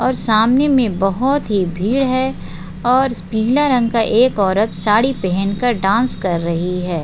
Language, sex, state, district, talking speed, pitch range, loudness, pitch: Hindi, female, Bihar, Jahanabad, 160 wpm, 190-255 Hz, -16 LUFS, 220 Hz